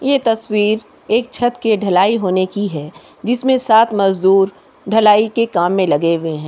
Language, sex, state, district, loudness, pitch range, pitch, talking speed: Hindi, female, Chhattisgarh, Kabirdham, -15 LUFS, 185-230 Hz, 210 Hz, 175 wpm